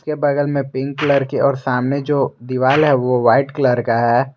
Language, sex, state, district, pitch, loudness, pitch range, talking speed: Hindi, male, Jharkhand, Garhwa, 135 Hz, -17 LUFS, 125-140 Hz, 220 wpm